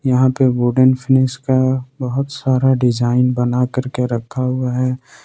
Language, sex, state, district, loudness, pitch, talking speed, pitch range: Hindi, male, Jharkhand, Ranchi, -17 LUFS, 130 Hz, 150 wpm, 125-130 Hz